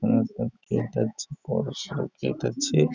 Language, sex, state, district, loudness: Bengali, male, West Bengal, Jhargram, -28 LUFS